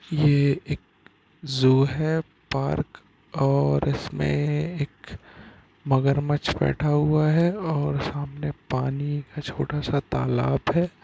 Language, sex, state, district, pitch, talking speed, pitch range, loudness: Hindi, male, Bihar, Gopalganj, 145 Hz, 110 wpm, 135-155 Hz, -24 LUFS